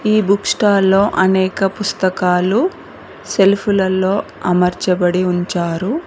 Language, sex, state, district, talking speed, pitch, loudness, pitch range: Telugu, female, Telangana, Mahabubabad, 90 wpm, 190 Hz, -15 LUFS, 180-200 Hz